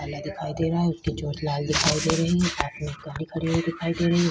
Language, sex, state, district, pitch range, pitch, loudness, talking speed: Hindi, female, Chhattisgarh, Kabirdham, 150-170 Hz, 160 Hz, -25 LUFS, 290 wpm